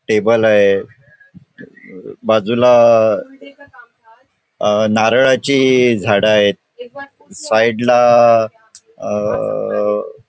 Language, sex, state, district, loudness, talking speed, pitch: Marathi, male, Goa, North and South Goa, -13 LUFS, 60 wpm, 130 Hz